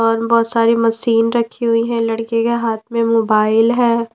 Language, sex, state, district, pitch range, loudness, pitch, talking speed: Hindi, female, Punjab, Pathankot, 225-235 Hz, -15 LUFS, 230 Hz, 190 wpm